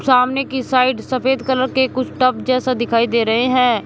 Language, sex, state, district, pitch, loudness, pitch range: Hindi, male, Uttar Pradesh, Shamli, 255 Hz, -17 LUFS, 245-260 Hz